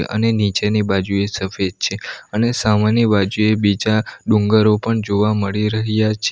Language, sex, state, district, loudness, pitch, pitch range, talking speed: Gujarati, male, Gujarat, Valsad, -17 LUFS, 105 Hz, 100-110 Hz, 150 wpm